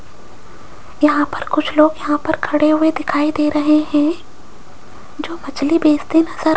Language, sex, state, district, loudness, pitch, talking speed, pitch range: Hindi, female, Rajasthan, Jaipur, -16 LUFS, 305 Hz, 155 wpm, 300-320 Hz